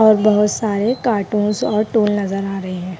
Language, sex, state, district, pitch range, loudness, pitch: Hindi, female, Haryana, Rohtak, 195-215 Hz, -18 LUFS, 210 Hz